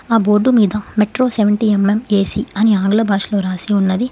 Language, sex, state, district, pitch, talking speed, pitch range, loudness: Telugu, female, Telangana, Hyderabad, 210 Hz, 160 wpm, 200-220 Hz, -15 LUFS